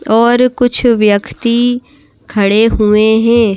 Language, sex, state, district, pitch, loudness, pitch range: Hindi, female, Madhya Pradesh, Bhopal, 230 Hz, -11 LUFS, 215-245 Hz